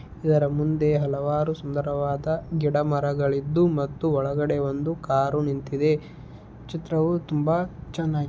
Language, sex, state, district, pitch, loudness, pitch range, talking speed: Kannada, male, Karnataka, Belgaum, 150 Hz, -25 LUFS, 145-160 Hz, 110 wpm